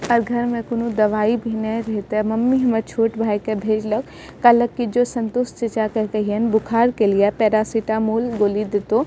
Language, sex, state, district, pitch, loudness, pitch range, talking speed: Maithili, female, Bihar, Madhepura, 220 Hz, -20 LUFS, 215-235 Hz, 185 wpm